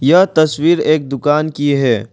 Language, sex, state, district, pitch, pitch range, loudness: Hindi, male, Arunachal Pradesh, Longding, 150 Hz, 140-155 Hz, -14 LUFS